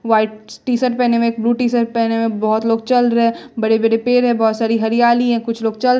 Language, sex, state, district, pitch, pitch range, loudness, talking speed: Hindi, female, Bihar, West Champaran, 230 Hz, 225-245 Hz, -16 LUFS, 260 wpm